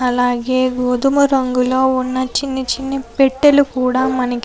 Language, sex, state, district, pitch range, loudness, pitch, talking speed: Telugu, female, Andhra Pradesh, Anantapur, 250-270 Hz, -16 LUFS, 255 Hz, 135 wpm